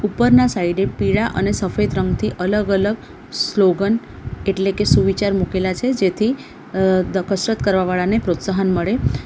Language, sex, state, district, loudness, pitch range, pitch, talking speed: Gujarati, female, Gujarat, Valsad, -18 LUFS, 185-210 Hz, 195 Hz, 140 wpm